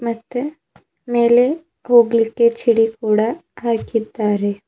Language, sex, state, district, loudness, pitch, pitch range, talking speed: Kannada, female, Karnataka, Bidar, -17 LUFS, 235 Hz, 225-240 Hz, 75 wpm